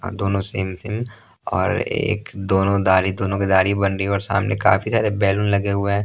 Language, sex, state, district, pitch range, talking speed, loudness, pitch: Hindi, male, Punjab, Pathankot, 95-105 Hz, 230 wpm, -20 LUFS, 100 Hz